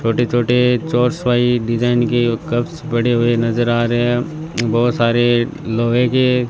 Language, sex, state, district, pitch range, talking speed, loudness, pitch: Hindi, male, Rajasthan, Bikaner, 120-125 Hz, 165 wpm, -16 LUFS, 120 Hz